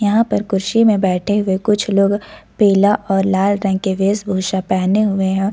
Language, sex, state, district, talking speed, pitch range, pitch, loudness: Hindi, female, Jharkhand, Ranchi, 195 wpm, 190-205 Hz, 200 Hz, -16 LUFS